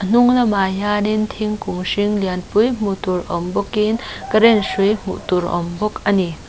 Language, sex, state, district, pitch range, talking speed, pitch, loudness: Mizo, female, Mizoram, Aizawl, 190-215 Hz, 175 wpm, 205 Hz, -18 LUFS